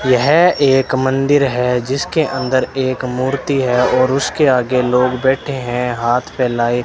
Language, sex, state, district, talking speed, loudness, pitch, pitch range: Hindi, male, Rajasthan, Bikaner, 155 wpm, -15 LUFS, 130 Hz, 125-135 Hz